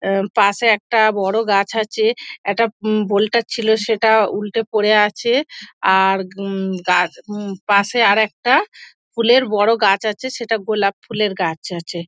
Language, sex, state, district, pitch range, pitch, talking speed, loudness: Bengali, female, West Bengal, Dakshin Dinajpur, 195-225 Hz, 210 Hz, 140 wpm, -17 LUFS